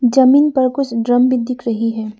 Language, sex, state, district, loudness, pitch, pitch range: Hindi, female, Arunachal Pradesh, Lower Dibang Valley, -15 LUFS, 250 Hz, 230-260 Hz